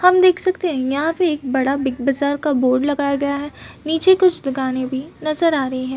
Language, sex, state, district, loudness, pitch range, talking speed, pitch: Hindi, female, Chhattisgarh, Bastar, -18 LUFS, 265-330 Hz, 220 wpm, 285 Hz